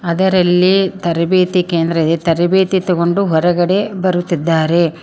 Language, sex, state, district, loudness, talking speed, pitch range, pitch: Kannada, female, Karnataka, Koppal, -14 LUFS, 95 wpm, 170-185 Hz, 175 Hz